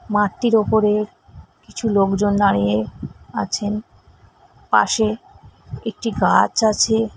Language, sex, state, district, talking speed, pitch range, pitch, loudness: Bengali, female, West Bengal, Alipurduar, 85 wpm, 205-220 Hz, 210 Hz, -19 LUFS